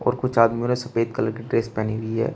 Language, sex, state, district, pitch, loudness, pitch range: Hindi, male, Uttar Pradesh, Shamli, 115 Hz, -23 LUFS, 110-125 Hz